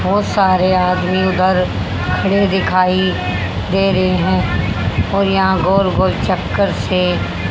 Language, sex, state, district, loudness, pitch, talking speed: Hindi, female, Haryana, Charkhi Dadri, -15 LUFS, 180 Hz, 120 wpm